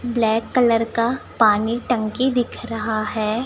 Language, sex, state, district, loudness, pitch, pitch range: Hindi, female, Chhattisgarh, Raipur, -20 LUFS, 230 Hz, 220-245 Hz